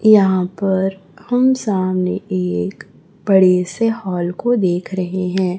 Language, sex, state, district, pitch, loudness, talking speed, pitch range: Hindi, female, Chhattisgarh, Raipur, 185 Hz, -17 LUFS, 130 wpm, 180-200 Hz